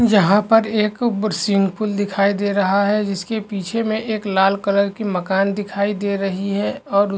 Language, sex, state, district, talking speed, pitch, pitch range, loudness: Hindi, male, Chhattisgarh, Bastar, 190 wpm, 200 Hz, 195-215 Hz, -19 LUFS